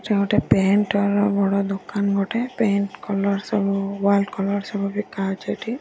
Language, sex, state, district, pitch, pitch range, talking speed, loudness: Odia, female, Odisha, Nuapada, 200 Hz, 195-205 Hz, 165 wpm, -22 LUFS